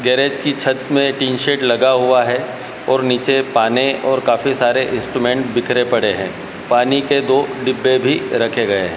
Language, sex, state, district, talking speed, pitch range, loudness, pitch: Hindi, male, Madhya Pradesh, Dhar, 180 wpm, 125-135 Hz, -16 LUFS, 130 Hz